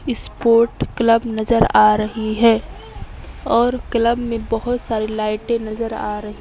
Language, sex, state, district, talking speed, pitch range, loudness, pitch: Hindi, female, Maharashtra, Mumbai Suburban, 150 wpm, 215-235 Hz, -18 LUFS, 230 Hz